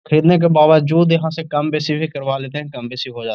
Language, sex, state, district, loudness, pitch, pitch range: Hindi, male, Bihar, Gaya, -16 LUFS, 150 Hz, 135-160 Hz